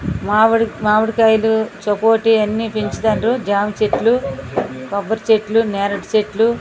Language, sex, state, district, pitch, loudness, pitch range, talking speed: Telugu, female, Andhra Pradesh, Srikakulam, 215 Hz, -17 LUFS, 205-225 Hz, 100 wpm